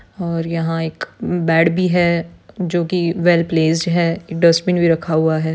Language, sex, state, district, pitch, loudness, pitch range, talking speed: Hindi, female, Rajasthan, Nagaur, 170 Hz, -17 LUFS, 165-175 Hz, 215 wpm